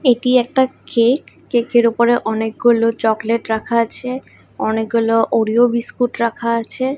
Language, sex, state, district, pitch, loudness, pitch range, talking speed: Bengali, female, Odisha, Khordha, 235 Hz, -17 LUFS, 225-245 Hz, 130 wpm